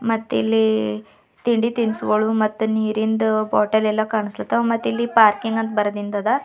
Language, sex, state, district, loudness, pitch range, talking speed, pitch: Kannada, female, Karnataka, Bidar, -20 LUFS, 210-225 Hz, 100 wpm, 220 Hz